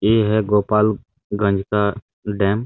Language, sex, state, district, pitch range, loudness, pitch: Hindi, male, Chhattisgarh, Bastar, 100-110 Hz, -19 LUFS, 105 Hz